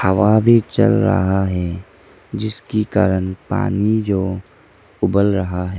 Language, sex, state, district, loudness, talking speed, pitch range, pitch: Hindi, male, Arunachal Pradesh, Lower Dibang Valley, -17 LUFS, 125 wpm, 95-110 Hz, 100 Hz